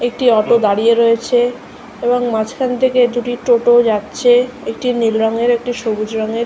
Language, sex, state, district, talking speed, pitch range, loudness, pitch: Bengali, female, West Bengal, Malda, 140 wpm, 225-245 Hz, -15 LUFS, 240 Hz